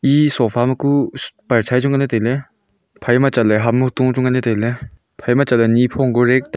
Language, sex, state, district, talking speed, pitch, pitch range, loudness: Wancho, male, Arunachal Pradesh, Longding, 165 wpm, 125 Hz, 115-130 Hz, -16 LUFS